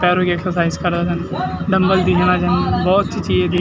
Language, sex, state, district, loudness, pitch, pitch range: Garhwali, male, Uttarakhand, Tehri Garhwal, -17 LUFS, 180 Hz, 175-185 Hz